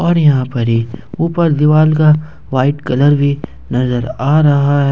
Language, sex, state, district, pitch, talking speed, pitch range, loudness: Hindi, male, Jharkhand, Ranchi, 145 Hz, 170 wpm, 130-155 Hz, -13 LUFS